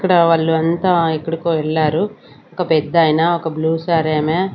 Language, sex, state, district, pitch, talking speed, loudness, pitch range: Telugu, female, Andhra Pradesh, Sri Satya Sai, 165 Hz, 145 wpm, -16 LUFS, 160-170 Hz